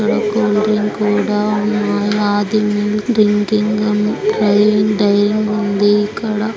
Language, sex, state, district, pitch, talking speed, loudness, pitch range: Telugu, female, Andhra Pradesh, Anantapur, 210 Hz, 65 wpm, -15 LUFS, 205-215 Hz